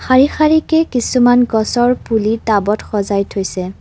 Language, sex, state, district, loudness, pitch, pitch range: Assamese, female, Assam, Kamrup Metropolitan, -14 LUFS, 230 Hz, 205-255 Hz